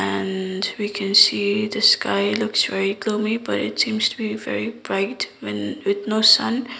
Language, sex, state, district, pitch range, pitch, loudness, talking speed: English, female, Sikkim, Gangtok, 190-220 Hz, 205 Hz, -20 LUFS, 175 wpm